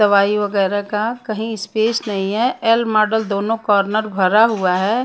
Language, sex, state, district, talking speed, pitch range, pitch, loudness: Hindi, female, Punjab, Pathankot, 180 wpm, 200-225 Hz, 215 Hz, -17 LUFS